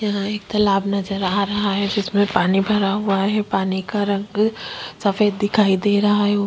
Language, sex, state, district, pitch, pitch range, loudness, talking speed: Hindi, female, Chhattisgarh, Kabirdham, 205 Hz, 195-205 Hz, -19 LUFS, 195 wpm